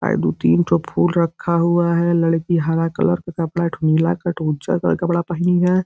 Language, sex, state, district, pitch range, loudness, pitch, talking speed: Hindi, male, Uttar Pradesh, Gorakhpur, 165-175 Hz, -18 LUFS, 170 Hz, 185 wpm